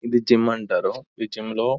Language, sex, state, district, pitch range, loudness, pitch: Telugu, male, Telangana, Nalgonda, 110-120 Hz, -22 LUFS, 115 Hz